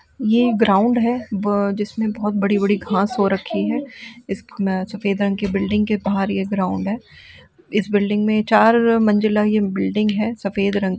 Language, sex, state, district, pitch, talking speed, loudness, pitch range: Hindi, female, Uttar Pradesh, Jalaun, 210 Hz, 185 wpm, -19 LUFS, 200-220 Hz